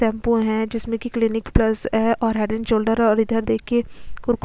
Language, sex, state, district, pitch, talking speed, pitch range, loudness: Hindi, female, Chhattisgarh, Sukma, 225 Hz, 190 wpm, 220-230 Hz, -21 LUFS